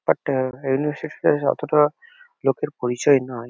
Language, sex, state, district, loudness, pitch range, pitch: Bengali, male, West Bengal, Kolkata, -22 LUFS, 130-155 Hz, 145 Hz